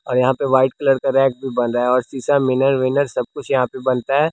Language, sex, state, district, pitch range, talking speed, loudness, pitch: Hindi, male, Bihar, West Champaran, 130-135 Hz, 290 wpm, -18 LUFS, 130 Hz